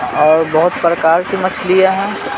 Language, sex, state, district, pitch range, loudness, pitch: Hindi, male, Bihar, Patna, 160-190 Hz, -13 LUFS, 180 Hz